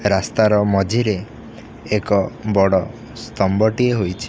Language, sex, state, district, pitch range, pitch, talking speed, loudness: Odia, male, Odisha, Khordha, 100-115 Hz, 105 Hz, 110 wpm, -18 LUFS